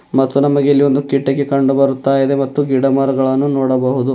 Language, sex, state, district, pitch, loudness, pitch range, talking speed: Kannada, male, Karnataka, Bidar, 135 Hz, -14 LUFS, 135-140 Hz, 160 wpm